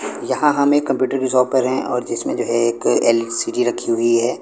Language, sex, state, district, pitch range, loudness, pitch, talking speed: Hindi, male, Punjab, Pathankot, 115-130 Hz, -18 LUFS, 125 Hz, 190 wpm